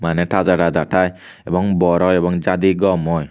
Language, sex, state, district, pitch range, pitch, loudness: Chakma, male, Tripura, Unakoti, 85-95 Hz, 90 Hz, -17 LUFS